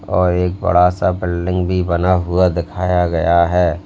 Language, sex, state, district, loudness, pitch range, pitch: Hindi, male, Uttar Pradesh, Lalitpur, -16 LUFS, 85-90 Hz, 90 Hz